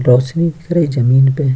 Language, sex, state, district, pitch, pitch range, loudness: Hindi, male, Bihar, Kishanganj, 135 Hz, 130-165 Hz, -14 LUFS